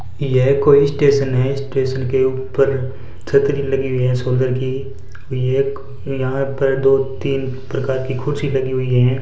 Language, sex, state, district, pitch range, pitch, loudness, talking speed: Hindi, male, Rajasthan, Bikaner, 130-135 Hz, 135 Hz, -18 LUFS, 170 wpm